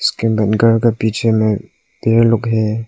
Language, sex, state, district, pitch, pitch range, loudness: Hindi, male, Nagaland, Kohima, 110 Hz, 110-115 Hz, -15 LUFS